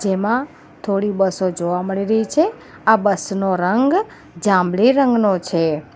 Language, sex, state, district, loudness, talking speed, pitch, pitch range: Gujarati, female, Gujarat, Valsad, -18 LUFS, 140 wpm, 200 Hz, 185-230 Hz